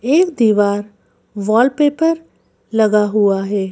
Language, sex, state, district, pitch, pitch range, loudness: Hindi, female, Madhya Pradesh, Bhopal, 215 Hz, 205-290 Hz, -15 LUFS